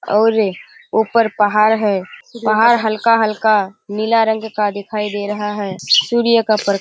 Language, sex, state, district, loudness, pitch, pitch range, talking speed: Hindi, female, Bihar, Kishanganj, -16 LUFS, 215 Hz, 205-225 Hz, 150 wpm